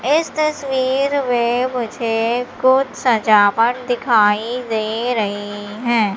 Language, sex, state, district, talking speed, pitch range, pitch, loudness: Hindi, female, Madhya Pradesh, Katni, 95 wpm, 220-260 Hz, 240 Hz, -17 LUFS